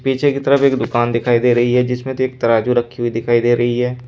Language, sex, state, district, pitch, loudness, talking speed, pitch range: Hindi, male, Uttar Pradesh, Shamli, 125 Hz, -16 LUFS, 265 wpm, 120-130 Hz